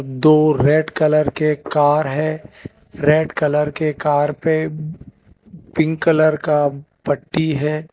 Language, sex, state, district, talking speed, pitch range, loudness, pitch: Hindi, male, Telangana, Hyderabad, 120 wpm, 150-155 Hz, -17 LUFS, 155 Hz